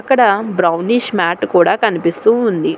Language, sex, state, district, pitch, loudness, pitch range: Telugu, female, Telangana, Hyderabad, 200 Hz, -14 LUFS, 170-230 Hz